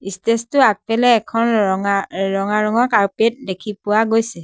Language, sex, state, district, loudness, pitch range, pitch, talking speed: Assamese, male, Assam, Sonitpur, -17 LUFS, 195-230 Hz, 220 Hz, 160 wpm